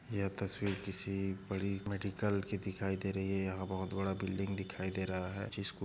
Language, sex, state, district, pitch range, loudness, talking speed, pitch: Hindi, male, Maharashtra, Nagpur, 95-100 Hz, -38 LUFS, 205 wpm, 95 Hz